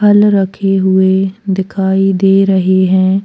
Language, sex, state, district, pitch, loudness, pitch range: Hindi, female, Chhattisgarh, Korba, 195 Hz, -11 LUFS, 190-195 Hz